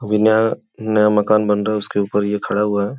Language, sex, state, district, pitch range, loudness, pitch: Hindi, male, Uttar Pradesh, Gorakhpur, 105-110 Hz, -17 LUFS, 105 Hz